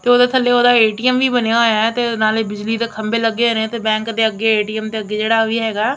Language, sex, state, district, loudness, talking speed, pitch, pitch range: Punjabi, female, Punjab, Kapurthala, -16 LUFS, 270 wpm, 225 Hz, 220-235 Hz